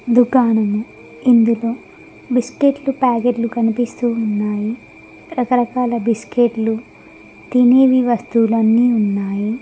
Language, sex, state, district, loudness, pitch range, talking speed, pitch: Telugu, female, Telangana, Mahabubabad, -16 LUFS, 225-245 Hz, 75 wpm, 235 Hz